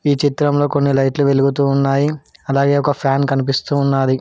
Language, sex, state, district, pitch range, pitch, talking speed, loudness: Telugu, male, Telangana, Hyderabad, 135-145 Hz, 140 Hz, 155 wpm, -16 LUFS